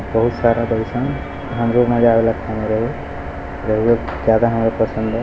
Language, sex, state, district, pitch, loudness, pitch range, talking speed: Hindi, male, Bihar, Gopalganj, 115 Hz, -18 LUFS, 110-115 Hz, 55 wpm